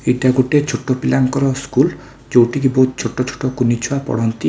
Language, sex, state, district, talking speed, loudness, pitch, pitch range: Odia, male, Odisha, Khordha, 160 wpm, -17 LUFS, 130 Hz, 120-135 Hz